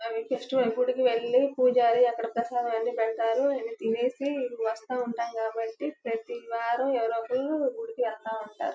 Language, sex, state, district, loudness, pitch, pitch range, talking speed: Telugu, female, Andhra Pradesh, Guntur, -28 LUFS, 235 Hz, 230-255 Hz, 135 wpm